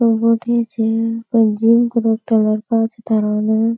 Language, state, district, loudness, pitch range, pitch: Surjapuri, Bihar, Kishanganj, -16 LUFS, 220-230 Hz, 225 Hz